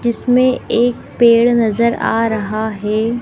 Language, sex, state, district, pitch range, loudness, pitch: Hindi, female, Madhya Pradesh, Dhar, 220-240 Hz, -15 LUFS, 230 Hz